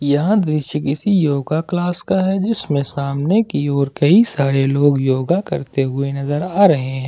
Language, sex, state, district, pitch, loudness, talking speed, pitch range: Hindi, male, Jharkhand, Ranchi, 145 Hz, -17 LUFS, 180 wpm, 140-180 Hz